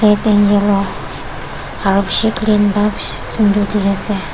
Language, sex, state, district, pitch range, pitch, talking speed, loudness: Nagamese, female, Nagaland, Dimapur, 200-210 Hz, 205 Hz, 110 wpm, -14 LUFS